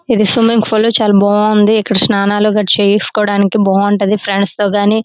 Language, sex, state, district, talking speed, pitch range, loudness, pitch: Telugu, female, Andhra Pradesh, Srikakulam, 155 wpm, 200-215 Hz, -11 LUFS, 210 Hz